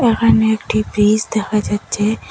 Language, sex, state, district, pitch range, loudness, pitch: Bengali, female, Assam, Hailakandi, 210-220 Hz, -16 LUFS, 215 Hz